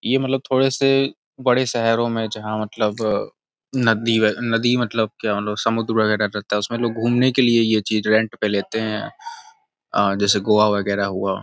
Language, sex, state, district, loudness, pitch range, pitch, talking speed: Hindi, male, Uttar Pradesh, Gorakhpur, -20 LUFS, 105-125 Hz, 110 Hz, 180 wpm